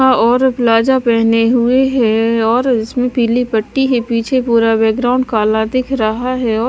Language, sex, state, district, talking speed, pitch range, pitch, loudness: Hindi, female, Maharashtra, Washim, 160 wpm, 225-255 Hz, 235 Hz, -13 LUFS